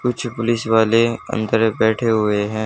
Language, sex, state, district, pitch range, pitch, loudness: Hindi, male, Haryana, Charkhi Dadri, 110-115 Hz, 115 Hz, -18 LUFS